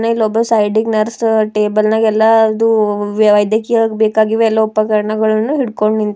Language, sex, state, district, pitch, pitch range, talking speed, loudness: Kannada, female, Karnataka, Bidar, 220 Hz, 215-225 Hz, 145 wpm, -13 LUFS